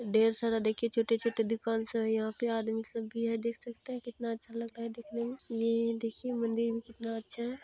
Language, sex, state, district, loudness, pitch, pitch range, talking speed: Hindi, female, Bihar, Jamui, -34 LUFS, 230 Hz, 225-235 Hz, 235 wpm